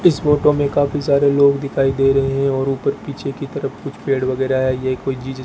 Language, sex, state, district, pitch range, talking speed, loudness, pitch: Hindi, female, Rajasthan, Bikaner, 135-140 Hz, 240 wpm, -18 LUFS, 135 Hz